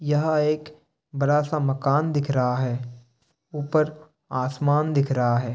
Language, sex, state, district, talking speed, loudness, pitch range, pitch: Hindi, male, Bihar, Kishanganj, 140 wpm, -24 LUFS, 130-150 Hz, 145 Hz